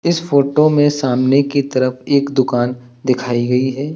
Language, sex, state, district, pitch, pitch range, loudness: Hindi, male, Uttar Pradesh, Lucknow, 135 Hz, 125-140 Hz, -15 LUFS